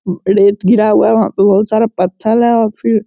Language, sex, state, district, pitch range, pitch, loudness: Hindi, male, Bihar, Sitamarhi, 200-225 Hz, 215 Hz, -12 LUFS